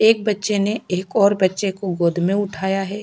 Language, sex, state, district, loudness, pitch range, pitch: Hindi, female, Chhattisgarh, Sukma, -20 LUFS, 185-205 Hz, 200 Hz